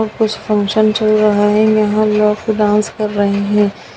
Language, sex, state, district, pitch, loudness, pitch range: Hindi, female, Bihar, Bhagalpur, 210 Hz, -14 LUFS, 210-215 Hz